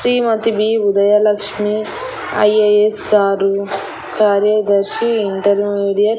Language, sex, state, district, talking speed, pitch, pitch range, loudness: Telugu, female, Andhra Pradesh, Annamaya, 80 wpm, 210 Hz, 200-215 Hz, -15 LUFS